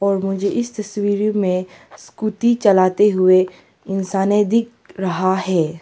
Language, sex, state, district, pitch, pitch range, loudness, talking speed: Hindi, female, Arunachal Pradesh, Papum Pare, 195 Hz, 185-210 Hz, -18 LUFS, 125 wpm